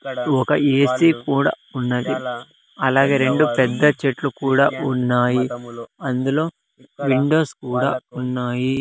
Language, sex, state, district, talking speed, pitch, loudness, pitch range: Telugu, male, Andhra Pradesh, Sri Satya Sai, 95 wpm, 130 Hz, -19 LUFS, 125-140 Hz